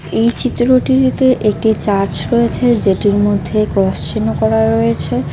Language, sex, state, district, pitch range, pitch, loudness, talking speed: Bengali, female, West Bengal, Cooch Behar, 165-235 Hz, 205 Hz, -14 LUFS, 125 wpm